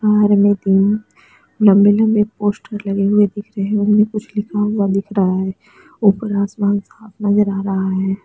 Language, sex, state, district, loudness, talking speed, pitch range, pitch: Hindi, female, Chhattisgarh, Raigarh, -16 LUFS, 180 wpm, 195-210 Hz, 205 Hz